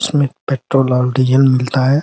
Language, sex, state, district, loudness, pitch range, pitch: Hindi, male, Uttar Pradesh, Ghazipur, -14 LUFS, 130-140 Hz, 135 Hz